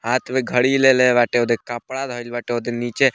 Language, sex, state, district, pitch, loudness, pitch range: Bhojpuri, male, Bihar, Muzaffarpur, 120 Hz, -19 LUFS, 120-130 Hz